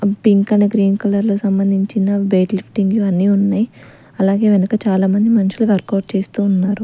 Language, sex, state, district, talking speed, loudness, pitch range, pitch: Telugu, female, Andhra Pradesh, Sri Satya Sai, 160 wpm, -15 LUFS, 195-210 Hz, 200 Hz